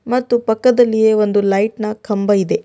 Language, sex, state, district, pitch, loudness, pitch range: Kannada, female, Karnataka, Bidar, 220 Hz, -15 LUFS, 205-245 Hz